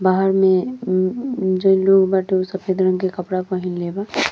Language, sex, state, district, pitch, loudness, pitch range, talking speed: Bhojpuri, female, Uttar Pradesh, Deoria, 190 Hz, -19 LUFS, 185-190 Hz, 195 wpm